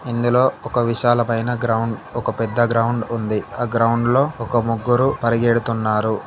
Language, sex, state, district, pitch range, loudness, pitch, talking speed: Telugu, male, Telangana, Karimnagar, 115-120 Hz, -19 LUFS, 115 Hz, 135 wpm